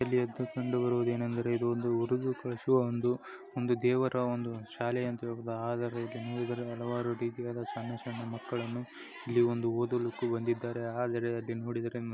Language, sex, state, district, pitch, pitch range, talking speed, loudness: Kannada, male, Karnataka, Chamarajanagar, 120 Hz, 120-125 Hz, 125 wpm, -33 LUFS